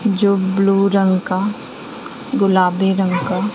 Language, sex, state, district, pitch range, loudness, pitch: Hindi, female, Bihar, West Champaran, 185-200 Hz, -16 LUFS, 195 Hz